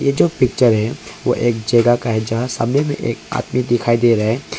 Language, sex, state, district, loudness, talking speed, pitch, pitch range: Hindi, male, Arunachal Pradesh, Longding, -17 LUFS, 235 wpm, 120 Hz, 115-125 Hz